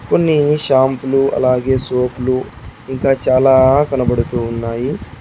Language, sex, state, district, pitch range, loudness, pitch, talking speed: Telugu, male, Telangana, Hyderabad, 125-135 Hz, -15 LUFS, 130 Hz, 105 wpm